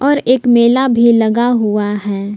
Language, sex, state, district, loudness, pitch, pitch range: Hindi, female, Jharkhand, Palamu, -12 LUFS, 235 Hz, 210-250 Hz